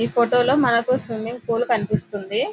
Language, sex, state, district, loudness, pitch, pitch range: Telugu, female, Telangana, Nalgonda, -21 LUFS, 235 Hz, 225-245 Hz